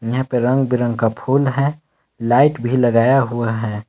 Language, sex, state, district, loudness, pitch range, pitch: Hindi, male, Jharkhand, Palamu, -17 LUFS, 115-135 Hz, 125 Hz